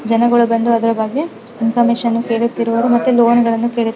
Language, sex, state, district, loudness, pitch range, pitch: Kannada, female, Karnataka, Mysore, -15 LUFS, 230-235 Hz, 235 Hz